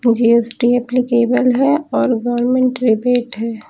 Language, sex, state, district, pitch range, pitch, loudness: Hindi, female, Uttar Pradesh, Lucknow, 235-255 Hz, 245 Hz, -15 LUFS